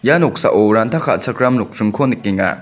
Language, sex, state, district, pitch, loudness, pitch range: Garo, male, Meghalaya, West Garo Hills, 105 Hz, -15 LUFS, 100-125 Hz